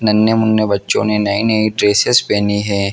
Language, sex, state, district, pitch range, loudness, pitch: Hindi, male, Jharkhand, Jamtara, 100-110 Hz, -14 LUFS, 105 Hz